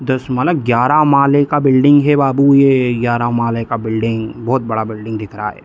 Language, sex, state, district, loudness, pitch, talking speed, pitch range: Hindi, male, Bihar, East Champaran, -14 LUFS, 125 Hz, 200 wpm, 115-140 Hz